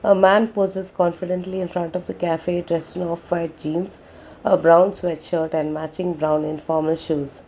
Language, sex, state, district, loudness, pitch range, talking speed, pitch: English, female, Karnataka, Bangalore, -21 LUFS, 160-180 Hz, 175 wpm, 170 Hz